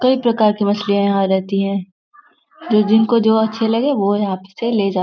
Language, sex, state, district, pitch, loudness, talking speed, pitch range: Hindi, female, Uttar Pradesh, Deoria, 215 Hz, -16 LUFS, 205 wpm, 200-235 Hz